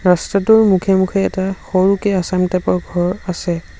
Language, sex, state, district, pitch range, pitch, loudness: Assamese, male, Assam, Sonitpur, 180-195 Hz, 190 Hz, -16 LUFS